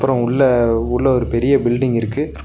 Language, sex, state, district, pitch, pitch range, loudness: Tamil, male, Tamil Nadu, Nilgiris, 125 Hz, 120-135 Hz, -16 LUFS